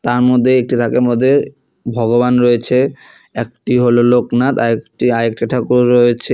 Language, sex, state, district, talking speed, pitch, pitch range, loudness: Bengali, male, West Bengal, Alipurduar, 130 wpm, 125 Hz, 120-125 Hz, -14 LUFS